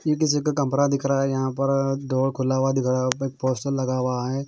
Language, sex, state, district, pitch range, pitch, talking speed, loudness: Hindi, male, Bihar, Katihar, 130-140 Hz, 135 Hz, 270 wpm, -23 LUFS